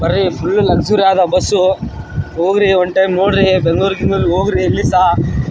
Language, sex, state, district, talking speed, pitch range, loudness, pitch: Kannada, male, Karnataka, Raichur, 140 wpm, 185-195 Hz, -13 LUFS, 190 Hz